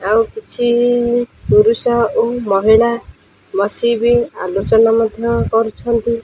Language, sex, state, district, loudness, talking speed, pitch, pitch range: Odia, female, Odisha, Khordha, -15 LUFS, 95 wpm, 235 Hz, 220-240 Hz